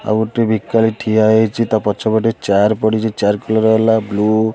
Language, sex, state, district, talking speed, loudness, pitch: Odia, male, Odisha, Khordha, 195 wpm, -15 LUFS, 110 Hz